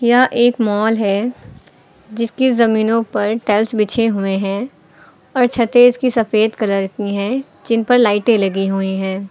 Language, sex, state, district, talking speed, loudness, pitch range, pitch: Hindi, female, Uttar Pradesh, Lucknow, 155 wpm, -16 LUFS, 205-240 Hz, 225 Hz